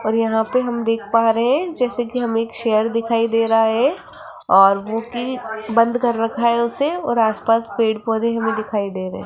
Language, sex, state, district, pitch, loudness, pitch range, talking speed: Hindi, female, Rajasthan, Jaipur, 230 Hz, -18 LUFS, 220-235 Hz, 220 wpm